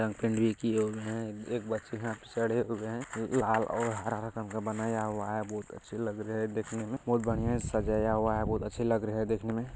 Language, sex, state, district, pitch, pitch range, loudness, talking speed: Hindi, male, Bihar, Purnia, 110 Hz, 110-115 Hz, -33 LUFS, 250 wpm